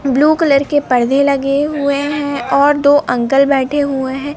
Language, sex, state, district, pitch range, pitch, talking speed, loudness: Hindi, male, Madhya Pradesh, Bhopal, 270-290 Hz, 280 Hz, 180 wpm, -13 LUFS